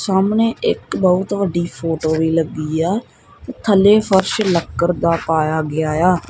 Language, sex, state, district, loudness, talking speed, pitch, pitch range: Punjabi, male, Punjab, Kapurthala, -17 LUFS, 145 wpm, 175 Hz, 160-195 Hz